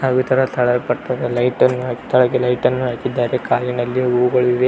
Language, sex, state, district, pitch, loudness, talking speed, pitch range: Kannada, male, Karnataka, Belgaum, 125 Hz, -17 LUFS, 165 wpm, 125-130 Hz